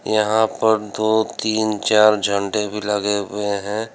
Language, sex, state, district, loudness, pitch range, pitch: Hindi, male, Uttar Pradesh, Lalitpur, -19 LUFS, 105-110 Hz, 105 Hz